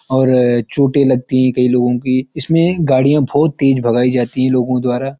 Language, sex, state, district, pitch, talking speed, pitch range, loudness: Hindi, male, Uttarakhand, Uttarkashi, 130 Hz, 195 wpm, 125-140 Hz, -14 LUFS